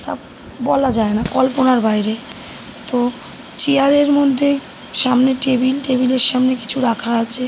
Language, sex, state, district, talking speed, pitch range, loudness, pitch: Bengali, female, West Bengal, North 24 Parganas, 135 wpm, 235-265 Hz, -16 LUFS, 255 Hz